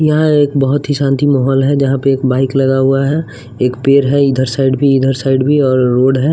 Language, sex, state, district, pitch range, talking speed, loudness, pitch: Hindi, male, Bihar, West Champaran, 130-140 Hz, 245 wpm, -12 LUFS, 135 Hz